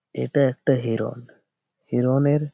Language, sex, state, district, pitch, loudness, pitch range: Bengali, male, West Bengal, Malda, 130 Hz, -22 LUFS, 115-140 Hz